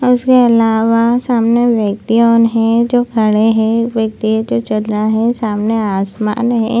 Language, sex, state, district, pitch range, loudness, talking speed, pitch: Hindi, female, Chhattisgarh, Bilaspur, 215-235 Hz, -13 LUFS, 185 wpm, 225 Hz